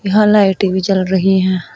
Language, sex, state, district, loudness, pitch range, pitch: Hindi, female, Uttar Pradesh, Shamli, -13 LUFS, 185-195 Hz, 190 Hz